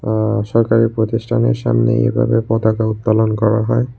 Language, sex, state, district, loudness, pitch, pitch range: Bengali, male, Tripura, West Tripura, -16 LUFS, 110 Hz, 110-115 Hz